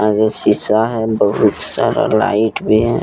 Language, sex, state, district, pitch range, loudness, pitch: Hindi, male, Jharkhand, Deoghar, 105-110 Hz, -15 LUFS, 110 Hz